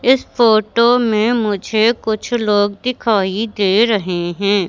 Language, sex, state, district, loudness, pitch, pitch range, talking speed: Hindi, male, Madhya Pradesh, Katni, -15 LUFS, 215 Hz, 205-235 Hz, 130 wpm